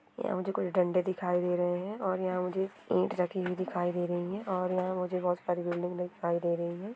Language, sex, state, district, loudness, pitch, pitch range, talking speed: Hindi, female, Bihar, Saran, -32 LUFS, 180 Hz, 175-185 Hz, 240 wpm